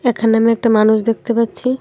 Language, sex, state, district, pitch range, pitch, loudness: Bengali, female, Tripura, Dhalai, 225-240 Hz, 230 Hz, -15 LUFS